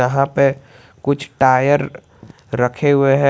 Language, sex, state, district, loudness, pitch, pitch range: Hindi, male, Jharkhand, Garhwa, -16 LUFS, 135 Hz, 130-140 Hz